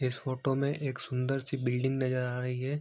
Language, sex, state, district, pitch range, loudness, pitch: Hindi, male, Bihar, Begusarai, 125-135 Hz, -32 LUFS, 130 Hz